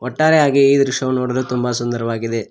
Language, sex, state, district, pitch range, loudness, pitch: Kannada, male, Karnataka, Koppal, 120-140 Hz, -16 LUFS, 125 Hz